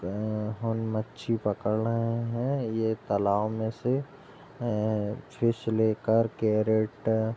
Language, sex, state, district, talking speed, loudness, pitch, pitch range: Hindi, male, Uttar Pradesh, Gorakhpur, 105 wpm, -28 LUFS, 110 Hz, 110-115 Hz